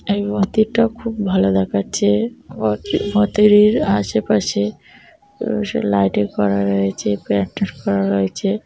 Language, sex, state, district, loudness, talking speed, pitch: Bengali, female, West Bengal, North 24 Parganas, -18 LUFS, 105 wpm, 105 Hz